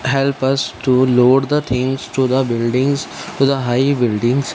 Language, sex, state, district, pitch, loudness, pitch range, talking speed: English, male, Punjab, Fazilka, 130 Hz, -16 LUFS, 125-135 Hz, 170 wpm